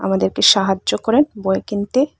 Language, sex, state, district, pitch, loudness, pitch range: Bengali, female, Tripura, West Tripura, 195 Hz, -17 LUFS, 145-235 Hz